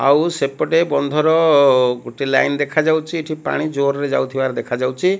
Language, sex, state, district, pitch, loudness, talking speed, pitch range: Odia, male, Odisha, Malkangiri, 140 Hz, -17 LUFS, 140 wpm, 135-160 Hz